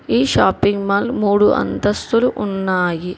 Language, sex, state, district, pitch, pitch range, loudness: Telugu, female, Telangana, Hyderabad, 205 Hz, 190-205 Hz, -17 LUFS